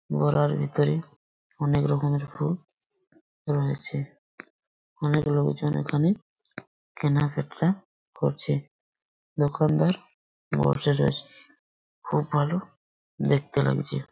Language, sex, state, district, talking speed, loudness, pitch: Bengali, male, West Bengal, Purulia, 80 wpm, -26 LUFS, 145 Hz